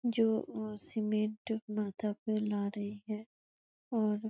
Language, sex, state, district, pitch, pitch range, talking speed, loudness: Hindi, female, Chhattisgarh, Bastar, 215 Hz, 210-220 Hz, 125 wpm, -35 LUFS